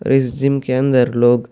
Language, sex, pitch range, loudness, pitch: Urdu, male, 120-135 Hz, -16 LUFS, 130 Hz